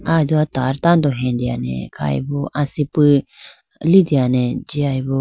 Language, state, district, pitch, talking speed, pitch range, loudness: Idu Mishmi, Arunachal Pradesh, Lower Dibang Valley, 140 Hz, 105 wpm, 125-150 Hz, -18 LUFS